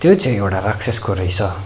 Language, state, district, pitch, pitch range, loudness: Nepali, West Bengal, Darjeeling, 100 Hz, 95-120 Hz, -15 LUFS